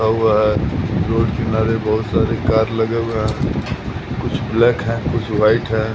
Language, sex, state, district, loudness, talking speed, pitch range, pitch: Hindi, male, Bihar, Patna, -18 LUFS, 170 wpm, 110-115 Hz, 110 Hz